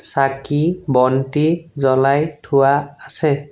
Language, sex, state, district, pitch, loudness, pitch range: Assamese, male, Assam, Sonitpur, 140 Hz, -17 LUFS, 135-150 Hz